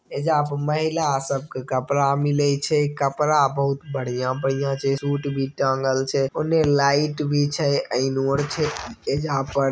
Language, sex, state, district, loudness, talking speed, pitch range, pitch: Maithili, male, Bihar, Begusarai, -22 LUFS, 150 wpm, 135-145 Hz, 140 Hz